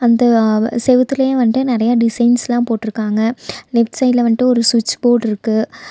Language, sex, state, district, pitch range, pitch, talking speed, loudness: Tamil, female, Tamil Nadu, Nilgiris, 225-245 Hz, 235 Hz, 140 wpm, -15 LUFS